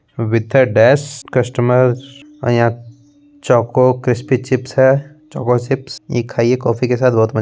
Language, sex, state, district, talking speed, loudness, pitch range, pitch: Hindi, male, Bihar, Begusarai, 160 wpm, -15 LUFS, 120-135 Hz, 125 Hz